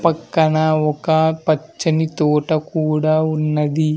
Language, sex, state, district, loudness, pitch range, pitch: Telugu, male, Andhra Pradesh, Sri Satya Sai, -18 LUFS, 155-160 Hz, 155 Hz